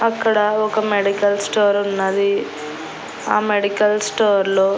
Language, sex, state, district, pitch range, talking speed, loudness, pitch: Telugu, female, Andhra Pradesh, Annamaya, 200-215 Hz, 125 wpm, -18 LUFS, 205 Hz